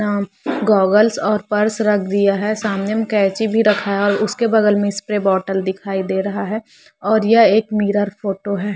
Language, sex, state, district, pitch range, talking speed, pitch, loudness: Hindi, female, Chhattisgarh, Korba, 200-215 Hz, 200 wpm, 205 Hz, -17 LUFS